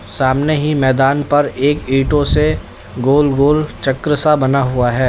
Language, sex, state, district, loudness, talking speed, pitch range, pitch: Hindi, male, Uttar Pradesh, Lalitpur, -14 LUFS, 165 wpm, 130-145 Hz, 135 Hz